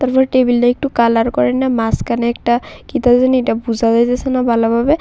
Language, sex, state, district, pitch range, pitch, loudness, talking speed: Bengali, female, Tripura, West Tripura, 235-260 Hz, 245 Hz, -15 LUFS, 145 wpm